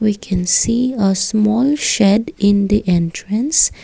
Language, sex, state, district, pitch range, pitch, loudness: English, female, Assam, Kamrup Metropolitan, 195-230 Hz, 205 Hz, -15 LUFS